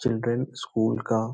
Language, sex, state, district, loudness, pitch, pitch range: Hindi, male, Bihar, Jahanabad, -27 LUFS, 115 Hz, 110-120 Hz